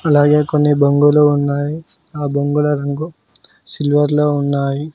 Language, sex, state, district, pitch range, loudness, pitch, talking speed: Telugu, male, Telangana, Mahabubabad, 140-150 Hz, -15 LUFS, 145 Hz, 120 wpm